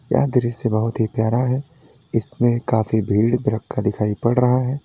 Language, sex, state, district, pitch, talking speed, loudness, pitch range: Hindi, male, Uttar Pradesh, Lalitpur, 120 Hz, 175 wpm, -20 LUFS, 110-125 Hz